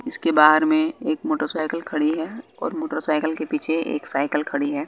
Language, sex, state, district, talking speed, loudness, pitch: Hindi, male, Bihar, West Champaran, 185 wpm, -21 LUFS, 160 Hz